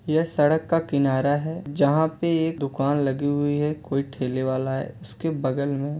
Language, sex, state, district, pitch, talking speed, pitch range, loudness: Hindi, male, Uttar Pradesh, Muzaffarnagar, 145 Hz, 200 wpm, 135-160 Hz, -24 LUFS